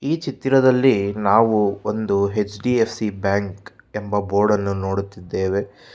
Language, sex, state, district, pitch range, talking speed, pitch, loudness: Kannada, male, Karnataka, Bangalore, 100-115 Hz, 90 wpm, 105 Hz, -20 LUFS